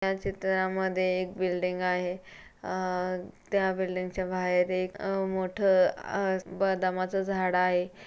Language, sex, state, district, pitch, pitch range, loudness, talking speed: Marathi, female, Maharashtra, Pune, 185 Hz, 185-190 Hz, -29 LUFS, 110 wpm